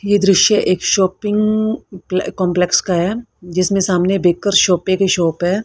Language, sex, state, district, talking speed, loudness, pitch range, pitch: Hindi, female, Haryana, Rohtak, 140 wpm, -15 LUFS, 180-205 Hz, 190 Hz